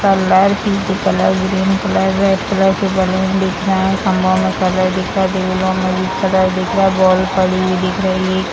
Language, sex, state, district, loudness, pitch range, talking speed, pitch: Hindi, female, Bihar, Sitamarhi, -15 LUFS, 185-195 Hz, 175 wpm, 190 Hz